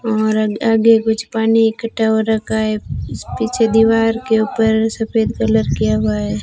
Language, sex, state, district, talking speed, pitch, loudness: Hindi, female, Rajasthan, Jaisalmer, 160 wpm, 220 Hz, -16 LUFS